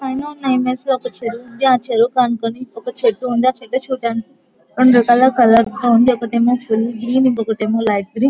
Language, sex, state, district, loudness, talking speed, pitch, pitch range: Telugu, female, Andhra Pradesh, Guntur, -16 LUFS, 175 wpm, 245 Hz, 230-255 Hz